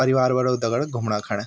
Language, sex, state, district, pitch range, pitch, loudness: Garhwali, male, Uttarakhand, Tehri Garhwal, 105-130 Hz, 120 Hz, -22 LUFS